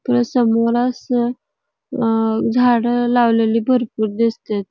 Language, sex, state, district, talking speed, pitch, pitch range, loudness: Marathi, female, Karnataka, Belgaum, 90 wpm, 235 Hz, 225-245 Hz, -17 LUFS